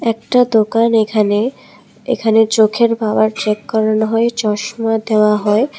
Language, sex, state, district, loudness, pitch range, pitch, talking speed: Bengali, female, Tripura, West Tripura, -14 LUFS, 215-230 Hz, 220 Hz, 135 wpm